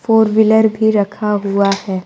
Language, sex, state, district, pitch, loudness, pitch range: Hindi, female, Bihar, Kaimur, 210 Hz, -14 LUFS, 200-220 Hz